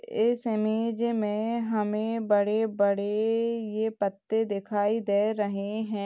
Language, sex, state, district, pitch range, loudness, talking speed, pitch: Hindi, female, Chhattisgarh, Sukma, 205-225 Hz, -27 LUFS, 110 wpm, 215 Hz